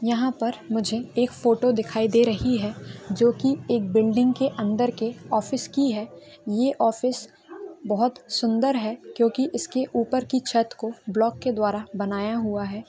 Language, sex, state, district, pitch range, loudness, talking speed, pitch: Hindi, female, Karnataka, Belgaum, 220-250 Hz, -24 LUFS, 165 wpm, 235 Hz